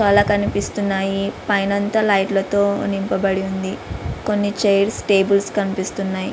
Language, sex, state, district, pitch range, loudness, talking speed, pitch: Telugu, female, Andhra Pradesh, Visakhapatnam, 195-205 Hz, -19 LUFS, 115 wpm, 200 Hz